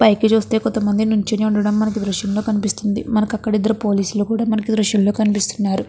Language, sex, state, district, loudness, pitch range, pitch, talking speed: Telugu, female, Andhra Pradesh, Krishna, -18 LUFS, 205-220 Hz, 215 Hz, 205 wpm